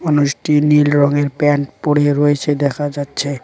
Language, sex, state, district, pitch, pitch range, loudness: Bengali, male, West Bengal, Cooch Behar, 145 Hz, 145-150 Hz, -15 LUFS